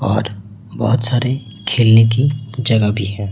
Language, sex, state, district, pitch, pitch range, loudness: Hindi, male, Chhattisgarh, Raipur, 115 Hz, 105-125 Hz, -15 LUFS